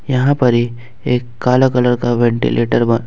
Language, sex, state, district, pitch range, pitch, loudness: Hindi, male, Jharkhand, Ranchi, 120-125 Hz, 120 Hz, -15 LUFS